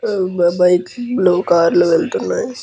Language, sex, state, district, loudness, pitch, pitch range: Telugu, male, Andhra Pradesh, Guntur, -15 LUFS, 180 Hz, 175-190 Hz